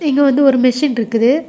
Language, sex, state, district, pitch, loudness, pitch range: Tamil, female, Tamil Nadu, Kanyakumari, 275 Hz, -13 LUFS, 250-285 Hz